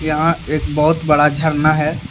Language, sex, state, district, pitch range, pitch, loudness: Hindi, male, Jharkhand, Deoghar, 150-155 Hz, 155 Hz, -16 LUFS